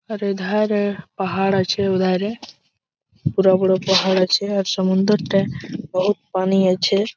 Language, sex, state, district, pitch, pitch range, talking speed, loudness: Bengali, male, West Bengal, Malda, 195 Hz, 185-205 Hz, 110 wpm, -19 LUFS